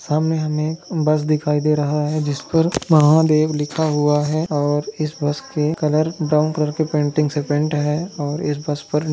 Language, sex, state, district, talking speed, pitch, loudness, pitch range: Hindi, male, Maharashtra, Nagpur, 195 wpm, 150 Hz, -19 LUFS, 150-155 Hz